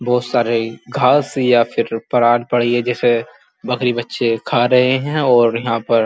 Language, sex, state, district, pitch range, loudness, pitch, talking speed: Hindi, male, Uttar Pradesh, Muzaffarnagar, 115-125 Hz, -16 LUFS, 120 Hz, 170 wpm